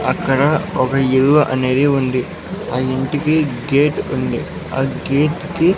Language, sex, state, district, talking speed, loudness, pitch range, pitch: Telugu, male, Andhra Pradesh, Sri Satya Sai, 135 wpm, -17 LUFS, 130-150 Hz, 135 Hz